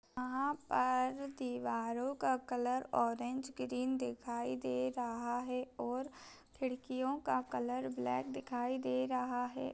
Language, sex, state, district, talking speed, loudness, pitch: Hindi, female, Bihar, Begusarai, 125 wpm, -38 LUFS, 245 Hz